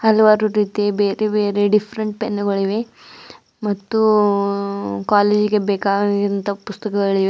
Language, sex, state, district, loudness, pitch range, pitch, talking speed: Kannada, female, Karnataka, Bidar, -18 LUFS, 200-215 Hz, 205 Hz, 80 wpm